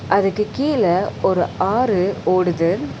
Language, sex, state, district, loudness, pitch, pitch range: Tamil, female, Tamil Nadu, Chennai, -19 LUFS, 190 Hz, 175-210 Hz